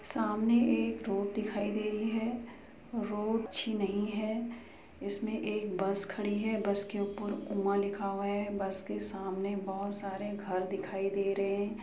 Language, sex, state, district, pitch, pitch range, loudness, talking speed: Hindi, female, Uttar Pradesh, Jyotiba Phule Nagar, 200 Hz, 195-215 Hz, -34 LUFS, 165 wpm